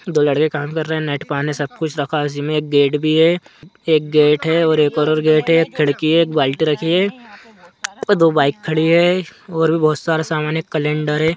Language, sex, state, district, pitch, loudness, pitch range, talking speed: Hindi, male, Jharkhand, Sahebganj, 155 Hz, -17 LUFS, 150-165 Hz, 255 wpm